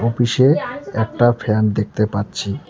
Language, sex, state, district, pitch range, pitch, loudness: Bengali, male, West Bengal, Cooch Behar, 105-135 Hz, 115 Hz, -18 LUFS